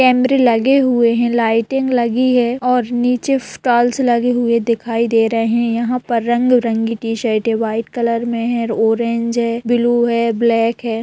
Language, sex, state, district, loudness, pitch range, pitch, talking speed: Hindi, female, Bihar, Purnia, -16 LUFS, 230-245 Hz, 235 Hz, 170 wpm